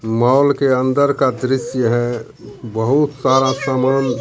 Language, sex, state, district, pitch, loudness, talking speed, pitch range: Hindi, male, Bihar, Katihar, 130 Hz, -16 LUFS, 130 wpm, 120-135 Hz